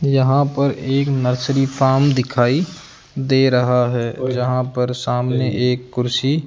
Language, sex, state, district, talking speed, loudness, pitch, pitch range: Hindi, male, Rajasthan, Jaipur, 130 wpm, -18 LUFS, 130 Hz, 125-140 Hz